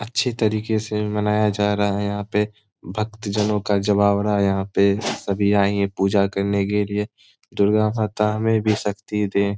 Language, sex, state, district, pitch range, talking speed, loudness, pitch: Hindi, male, Bihar, Gopalganj, 100-105 Hz, 180 wpm, -21 LUFS, 105 Hz